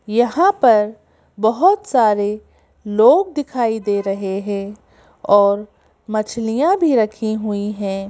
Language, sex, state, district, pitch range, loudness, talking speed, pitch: Hindi, female, Madhya Pradesh, Bhopal, 205-240 Hz, -17 LUFS, 110 wpm, 215 Hz